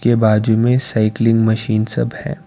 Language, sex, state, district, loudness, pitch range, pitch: Hindi, male, Karnataka, Bangalore, -16 LUFS, 110-125 Hz, 115 Hz